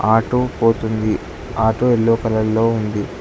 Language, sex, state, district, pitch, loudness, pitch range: Telugu, male, Telangana, Hyderabad, 110 Hz, -18 LUFS, 110-115 Hz